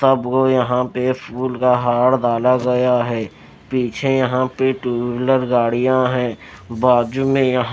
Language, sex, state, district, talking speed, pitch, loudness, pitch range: Hindi, male, Maharashtra, Mumbai Suburban, 130 wpm, 125 Hz, -18 LUFS, 120-130 Hz